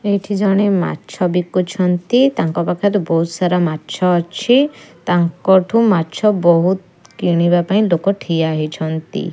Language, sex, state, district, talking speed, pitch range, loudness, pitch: Odia, female, Odisha, Khordha, 115 wpm, 170-200 Hz, -16 LUFS, 180 Hz